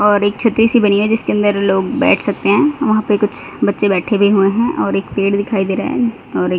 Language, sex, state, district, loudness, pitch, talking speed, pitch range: Hindi, female, Haryana, Rohtak, -14 LUFS, 205 Hz, 275 wpm, 195-225 Hz